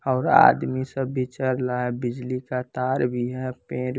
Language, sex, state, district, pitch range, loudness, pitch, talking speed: Hindi, female, Bihar, West Champaran, 125-130 Hz, -24 LUFS, 125 Hz, 195 wpm